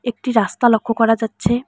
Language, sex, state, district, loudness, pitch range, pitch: Bengali, female, West Bengal, Alipurduar, -17 LUFS, 225-240 Hz, 225 Hz